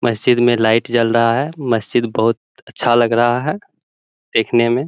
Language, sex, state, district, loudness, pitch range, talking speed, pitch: Hindi, male, Bihar, Araria, -16 LUFS, 115-120 Hz, 170 wpm, 120 Hz